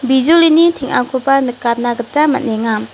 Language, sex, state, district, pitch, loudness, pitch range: Garo, female, Meghalaya, West Garo Hills, 260 Hz, -13 LUFS, 240-295 Hz